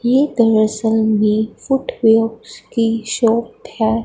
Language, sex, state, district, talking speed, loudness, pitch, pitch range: Hindi, female, Punjab, Fazilka, 90 wpm, -16 LUFS, 225 Hz, 220-235 Hz